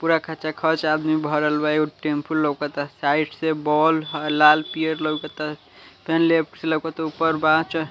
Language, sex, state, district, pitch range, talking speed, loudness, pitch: Bhojpuri, male, Bihar, Muzaffarpur, 150-160 Hz, 150 wpm, -21 LUFS, 155 Hz